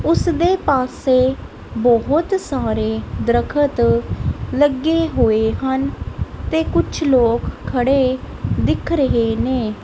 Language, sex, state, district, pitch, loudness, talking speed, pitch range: Punjabi, female, Punjab, Kapurthala, 255 Hz, -18 LUFS, 90 wpm, 230-290 Hz